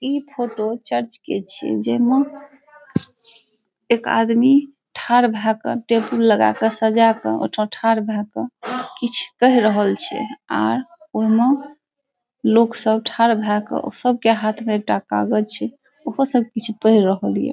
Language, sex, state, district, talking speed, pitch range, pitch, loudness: Maithili, female, Bihar, Saharsa, 155 wpm, 215-250 Hz, 230 Hz, -19 LUFS